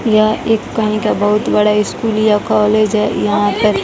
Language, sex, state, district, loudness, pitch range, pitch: Hindi, female, Bihar, West Champaran, -14 LUFS, 210-215 Hz, 215 Hz